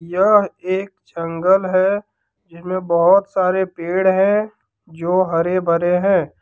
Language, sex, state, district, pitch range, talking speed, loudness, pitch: Hindi, male, Jharkhand, Deoghar, 170-195 Hz, 120 wpm, -17 LUFS, 185 Hz